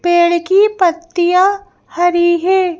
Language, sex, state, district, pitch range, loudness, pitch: Hindi, female, Madhya Pradesh, Bhopal, 345-380 Hz, -13 LUFS, 355 Hz